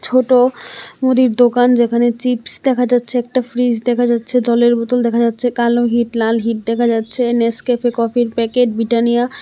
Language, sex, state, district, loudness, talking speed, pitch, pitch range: Bengali, female, Tripura, West Tripura, -15 LUFS, 165 wpm, 240 Hz, 235-245 Hz